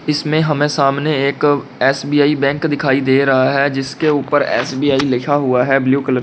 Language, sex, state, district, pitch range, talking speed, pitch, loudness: Hindi, male, Uttar Pradesh, Lalitpur, 135-145 Hz, 185 wpm, 140 Hz, -15 LUFS